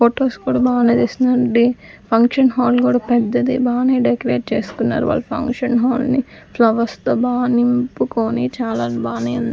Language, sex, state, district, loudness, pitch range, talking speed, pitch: Telugu, female, Andhra Pradesh, Sri Satya Sai, -17 LUFS, 230-255 Hz, 145 wpm, 245 Hz